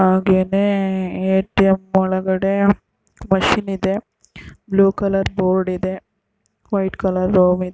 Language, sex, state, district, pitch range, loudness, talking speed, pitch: Kannada, female, Karnataka, Bijapur, 185-195 Hz, -18 LUFS, 125 wpm, 190 Hz